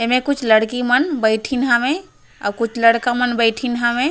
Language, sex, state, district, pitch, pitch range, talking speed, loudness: Chhattisgarhi, female, Chhattisgarh, Raigarh, 240 Hz, 230-255 Hz, 175 wpm, -17 LUFS